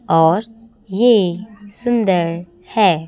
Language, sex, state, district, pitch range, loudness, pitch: Hindi, female, Chhattisgarh, Raipur, 175-225 Hz, -16 LUFS, 200 Hz